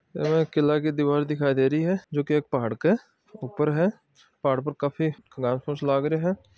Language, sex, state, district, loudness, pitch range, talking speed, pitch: Marwari, male, Rajasthan, Nagaur, -25 LUFS, 140-160 Hz, 210 wpm, 150 Hz